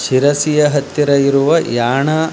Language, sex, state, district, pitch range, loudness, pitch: Kannada, male, Karnataka, Dharwad, 135-150 Hz, -14 LUFS, 140 Hz